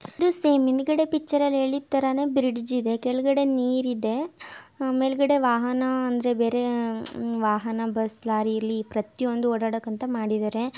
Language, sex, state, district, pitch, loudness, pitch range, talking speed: Kannada, female, Karnataka, Raichur, 250 Hz, -25 LUFS, 225-270 Hz, 95 wpm